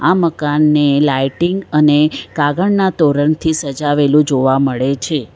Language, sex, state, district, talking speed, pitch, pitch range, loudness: Gujarati, female, Gujarat, Valsad, 125 wpm, 150 Hz, 140-160 Hz, -14 LUFS